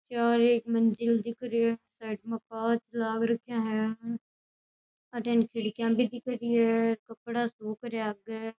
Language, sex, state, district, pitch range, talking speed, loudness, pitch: Rajasthani, female, Rajasthan, Churu, 225-235 Hz, 160 wpm, -29 LUFS, 230 Hz